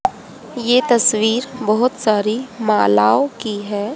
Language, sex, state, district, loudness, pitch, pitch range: Hindi, female, Haryana, Jhajjar, -17 LUFS, 225 Hz, 210-250 Hz